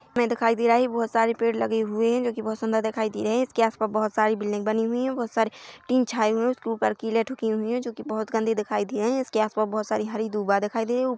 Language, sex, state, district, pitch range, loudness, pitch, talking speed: Hindi, female, Chhattisgarh, Korba, 215-235 Hz, -25 LUFS, 225 Hz, 305 wpm